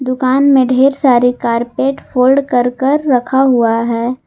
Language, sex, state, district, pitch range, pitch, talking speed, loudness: Hindi, female, Jharkhand, Palamu, 245-270 Hz, 255 Hz, 155 wpm, -12 LUFS